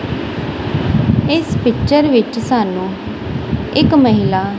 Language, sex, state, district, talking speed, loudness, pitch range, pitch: Punjabi, female, Punjab, Kapurthala, 80 wpm, -15 LUFS, 190-255 Hz, 220 Hz